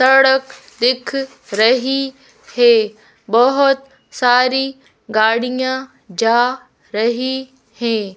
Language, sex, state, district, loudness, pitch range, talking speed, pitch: Hindi, female, Madhya Pradesh, Bhopal, -16 LUFS, 230-265 Hz, 75 wpm, 250 Hz